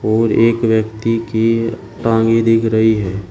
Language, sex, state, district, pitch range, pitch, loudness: Hindi, male, Uttar Pradesh, Shamli, 110-115 Hz, 115 Hz, -15 LUFS